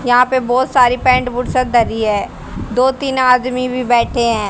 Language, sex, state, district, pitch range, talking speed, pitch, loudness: Hindi, female, Haryana, Jhajjar, 240-255 Hz, 200 wpm, 250 Hz, -14 LUFS